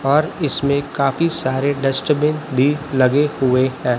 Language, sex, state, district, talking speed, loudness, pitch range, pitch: Hindi, male, Chhattisgarh, Raipur, 135 wpm, -17 LUFS, 135-150 Hz, 140 Hz